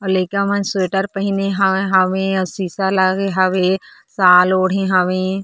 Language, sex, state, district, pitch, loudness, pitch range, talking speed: Chhattisgarhi, female, Chhattisgarh, Korba, 190 Hz, -16 LUFS, 185-195 Hz, 130 wpm